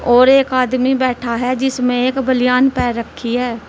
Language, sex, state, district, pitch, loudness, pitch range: Hindi, female, Uttar Pradesh, Saharanpur, 250 Hz, -15 LUFS, 245-260 Hz